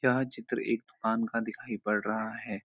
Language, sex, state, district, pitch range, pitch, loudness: Hindi, male, Uttarakhand, Uttarkashi, 110-115 Hz, 115 Hz, -32 LUFS